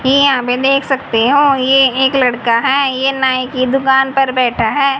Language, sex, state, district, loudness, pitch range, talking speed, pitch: Hindi, female, Haryana, Jhajjar, -12 LUFS, 255-270 Hz, 190 wpm, 265 Hz